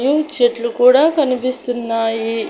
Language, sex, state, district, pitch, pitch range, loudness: Telugu, female, Andhra Pradesh, Annamaya, 245 Hz, 230-265 Hz, -15 LUFS